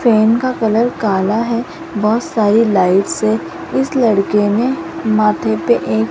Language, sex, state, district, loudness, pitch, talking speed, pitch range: Hindi, female, Rajasthan, Jaipur, -15 LUFS, 215 Hz, 155 wpm, 195-235 Hz